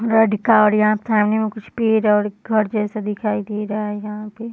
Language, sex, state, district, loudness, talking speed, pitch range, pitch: Hindi, female, Bihar, Sitamarhi, -19 LUFS, 240 wpm, 210-220 Hz, 215 Hz